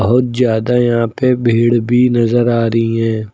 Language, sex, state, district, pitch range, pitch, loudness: Hindi, male, Uttar Pradesh, Lucknow, 115-125 Hz, 120 Hz, -13 LUFS